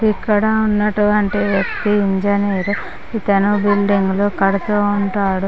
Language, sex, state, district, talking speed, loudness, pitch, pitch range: Telugu, female, Andhra Pradesh, Chittoor, 110 wpm, -17 LUFS, 205 Hz, 200-210 Hz